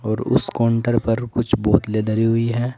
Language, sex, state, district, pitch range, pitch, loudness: Hindi, male, Uttar Pradesh, Saharanpur, 110-120 Hz, 115 Hz, -19 LUFS